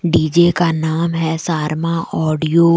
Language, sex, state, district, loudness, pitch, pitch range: Hindi, female, Jharkhand, Deoghar, -16 LUFS, 165 Hz, 160-170 Hz